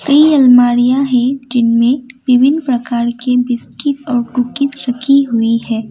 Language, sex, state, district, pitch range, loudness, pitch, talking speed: Hindi, female, Assam, Kamrup Metropolitan, 240-270 Hz, -13 LUFS, 250 Hz, 130 wpm